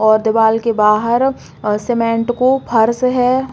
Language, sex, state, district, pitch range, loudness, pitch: Bundeli, female, Uttar Pradesh, Hamirpur, 220-250 Hz, -15 LUFS, 230 Hz